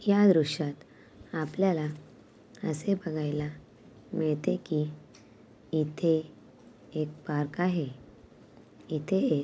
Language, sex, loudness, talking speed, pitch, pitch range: Marathi, female, -30 LUFS, 75 wpm, 155 Hz, 150-165 Hz